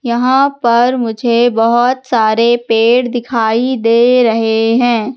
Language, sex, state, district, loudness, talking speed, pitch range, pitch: Hindi, female, Madhya Pradesh, Katni, -12 LUFS, 115 wpm, 230-245 Hz, 235 Hz